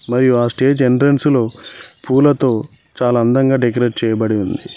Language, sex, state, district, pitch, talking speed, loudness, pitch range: Telugu, male, Telangana, Mahabubabad, 125 Hz, 140 wpm, -15 LUFS, 120-135 Hz